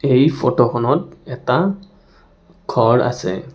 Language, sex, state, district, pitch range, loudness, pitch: Assamese, male, Assam, Kamrup Metropolitan, 120-150 Hz, -17 LUFS, 125 Hz